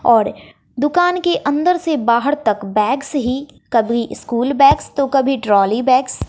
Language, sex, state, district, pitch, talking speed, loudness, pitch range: Hindi, female, Bihar, West Champaran, 270 Hz, 160 wpm, -16 LUFS, 235-290 Hz